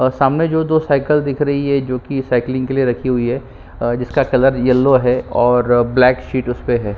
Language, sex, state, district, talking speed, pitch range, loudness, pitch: Hindi, male, Chhattisgarh, Kabirdham, 215 wpm, 125-140 Hz, -16 LUFS, 130 Hz